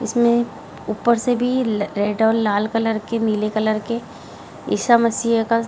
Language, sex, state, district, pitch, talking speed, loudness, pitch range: Hindi, female, Bihar, Jahanabad, 225 Hz, 170 wpm, -20 LUFS, 215-235 Hz